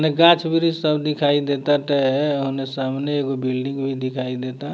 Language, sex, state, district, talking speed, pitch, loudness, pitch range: Bhojpuri, male, Bihar, Muzaffarpur, 175 wpm, 140 Hz, -20 LUFS, 135-150 Hz